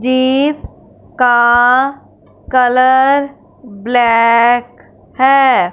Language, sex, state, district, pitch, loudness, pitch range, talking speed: Hindi, female, Punjab, Fazilka, 255 Hz, -11 LUFS, 240-265 Hz, 50 wpm